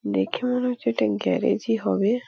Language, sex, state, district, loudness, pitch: Bengali, female, West Bengal, Paschim Medinipur, -24 LUFS, 195 Hz